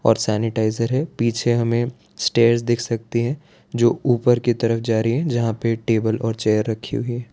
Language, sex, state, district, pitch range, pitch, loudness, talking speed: Hindi, male, Gujarat, Valsad, 115-120 Hz, 115 Hz, -20 LUFS, 195 wpm